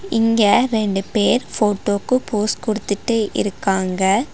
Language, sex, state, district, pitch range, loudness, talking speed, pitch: Tamil, female, Tamil Nadu, Nilgiris, 200-235 Hz, -18 LUFS, 110 wpm, 210 Hz